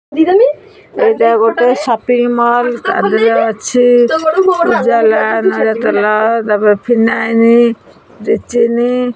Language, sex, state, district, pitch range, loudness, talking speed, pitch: Odia, female, Odisha, Khordha, 225-245 Hz, -11 LUFS, 85 wpm, 235 Hz